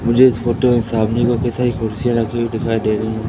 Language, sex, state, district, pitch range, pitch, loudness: Hindi, male, Madhya Pradesh, Katni, 110-120 Hz, 115 Hz, -17 LUFS